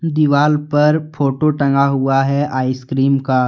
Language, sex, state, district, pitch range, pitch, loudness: Hindi, male, Jharkhand, Deoghar, 135-150 Hz, 140 Hz, -16 LUFS